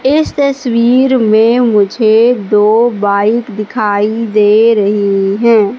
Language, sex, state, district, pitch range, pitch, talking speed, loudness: Hindi, female, Madhya Pradesh, Katni, 210-240 Hz, 220 Hz, 105 wpm, -10 LUFS